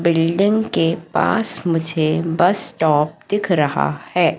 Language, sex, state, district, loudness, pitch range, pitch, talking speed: Hindi, female, Madhya Pradesh, Katni, -18 LUFS, 160-195 Hz, 170 Hz, 125 wpm